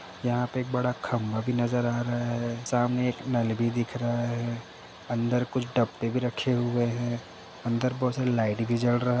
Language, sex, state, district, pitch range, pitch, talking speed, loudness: Hindi, male, Uttar Pradesh, Budaun, 115-125 Hz, 120 Hz, 210 wpm, -28 LUFS